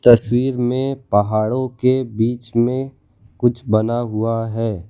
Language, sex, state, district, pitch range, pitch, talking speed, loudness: Hindi, male, Gujarat, Valsad, 115-130 Hz, 120 Hz, 145 wpm, -19 LUFS